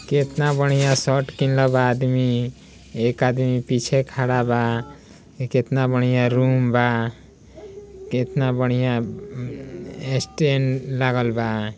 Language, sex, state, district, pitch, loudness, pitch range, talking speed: Bhojpuri, male, Bihar, Gopalganj, 130 Hz, -21 LUFS, 125-135 Hz, 110 wpm